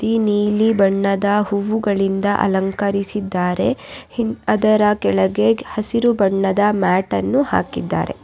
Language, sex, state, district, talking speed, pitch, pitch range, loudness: Kannada, female, Karnataka, Raichur, 85 wpm, 205 Hz, 195-215 Hz, -18 LUFS